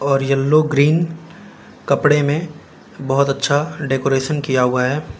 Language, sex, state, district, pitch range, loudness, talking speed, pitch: Hindi, male, Gujarat, Valsad, 135-155 Hz, -17 LUFS, 125 wpm, 145 Hz